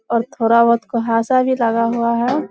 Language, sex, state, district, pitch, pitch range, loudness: Hindi, female, Bihar, Samastipur, 235 Hz, 230-245 Hz, -16 LUFS